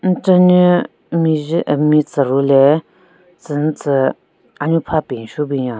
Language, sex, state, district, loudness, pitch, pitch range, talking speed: Rengma, female, Nagaland, Kohima, -15 LUFS, 155 Hz, 140-175 Hz, 115 wpm